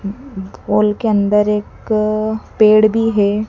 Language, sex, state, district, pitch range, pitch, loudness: Hindi, female, Madhya Pradesh, Dhar, 205-215 Hz, 215 Hz, -15 LUFS